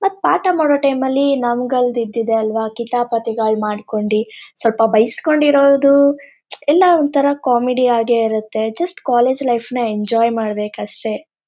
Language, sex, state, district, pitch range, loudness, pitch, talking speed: Kannada, female, Karnataka, Shimoga, 225-280 Hz, -16 LUFS, 240 Hz, 115 wpm